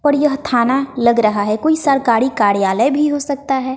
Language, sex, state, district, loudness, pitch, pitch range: Hindi, female, Bihar, West Champaran, -15 LUFS, 265 Hz, 230-285 Hz